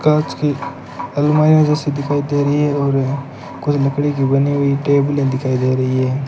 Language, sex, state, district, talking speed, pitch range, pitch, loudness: Hindi, male, Rajasthan, Bikaner, 180 wpm, 135-145 Hz, 140 Hz, -16 LUFS